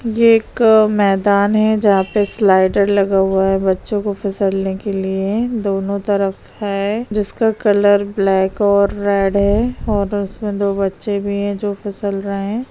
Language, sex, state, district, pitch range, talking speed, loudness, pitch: Hindi, female, Bihar, Saharsa, 195-210 Hz, 160 wpm, -16 LUFS, 200 Hz